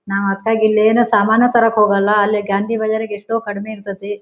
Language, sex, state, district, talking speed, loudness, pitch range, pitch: Kannada, female, Karnataka, Shimoga, 200 wpm, -15 LUFS, 205-220 Hz, 210 Hz